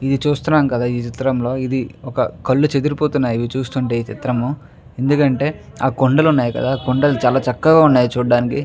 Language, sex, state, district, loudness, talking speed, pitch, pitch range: Telugu, male, Andhra Pradesh, Chittoor, -17 LUFS, 165 wpm, 130 Hz, 125-145 Hz